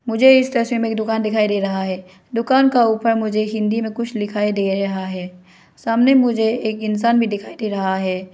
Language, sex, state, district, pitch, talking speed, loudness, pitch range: Hindi, female, Arunachal Pradesh, Lower Dibang Valley, 220 Hz, 215 wpm, -18 LUFS, 195-230 Hz